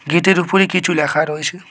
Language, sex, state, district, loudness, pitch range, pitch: Bengali, male, West Bengal, Cooch Behar, -15 LUFS, 150-185 Hz, 175 Hz